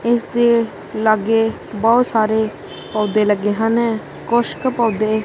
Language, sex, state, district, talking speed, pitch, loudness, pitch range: Punjabi, male, Punjab, Kapurthala, 105 wpm, 225 Hz, -17 LUFS, 215-235 Hz